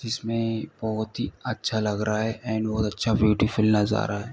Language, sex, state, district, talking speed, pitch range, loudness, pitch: Hindi, male, Uttar Pradesh, Ghazipur, 180 wpm, 105-110 Hz, -25 LUFS, 110 Hz